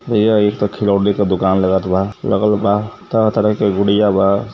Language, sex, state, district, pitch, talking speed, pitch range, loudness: Hindi, male, Uttar Pradesh, Varanasi, 100 Hz, 185 wpm, 95-105 Hz, -15 LUFS